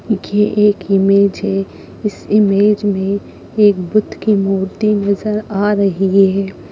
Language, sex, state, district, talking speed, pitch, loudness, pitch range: Hindi, male, Bihar, Gaya, 135 wpm, 200 Hz, -15 LUFS, 195-210 Hz